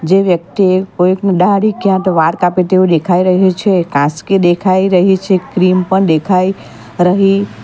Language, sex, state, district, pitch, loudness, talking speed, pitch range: Gujarati, female, Gujarat, Valsad, 185 Hz, -12 LUFS, 155 wpm, 180-195 Hz